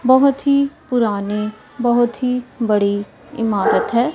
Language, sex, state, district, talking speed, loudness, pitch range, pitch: Hindi, female, Punjab, Pathankot, 115 wpm, -18 LUFS, 215-265 Hz, 240 Hz